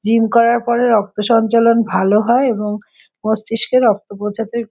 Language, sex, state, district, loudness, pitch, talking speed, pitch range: Bengali, female, West Bengal, Jhargram, -15 LUFS, 225 Hz, 140 wpm, 210-235 Hz